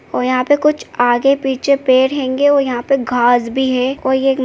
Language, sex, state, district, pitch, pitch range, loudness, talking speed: Hindi, female, Bihar, Begusarai, 265 Hz, 250-275 Hz, -15 LUFS, 230 wpm